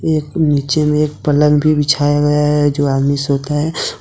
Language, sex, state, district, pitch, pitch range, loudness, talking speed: Hindi, male, Jharkhand, Deoghar, 150 Hz, 145-150 Hz, -14 LUFS, 195 wpm